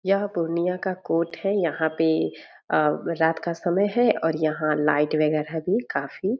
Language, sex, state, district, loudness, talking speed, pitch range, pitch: Hindi, female, Bihar, Purnia, -24 LUFS, 170 wpm, 155-185 Hz, 165 Hz